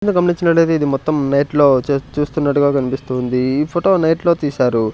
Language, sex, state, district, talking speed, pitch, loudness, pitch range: Telugu, male, Andhra Pradesh, Sri Satya Sai, 160 wpm, 145 Hz, -16 LUFS, 135-165 Hz